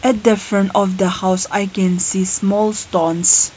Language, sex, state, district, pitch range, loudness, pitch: English, female, Nagaland, Kohima, 185-205 Hz, -16 LUFS, 195 Hz